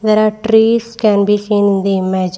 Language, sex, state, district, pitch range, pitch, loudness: English, female, Karnataka, Bangalore, 195-220 Hz, 210 Hz, -13 LUFS